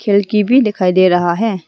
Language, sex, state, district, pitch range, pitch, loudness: Hindi, female, Arunachal Pradesh, Longding, 185-220 Hz, 200 Hz, -13 LUFS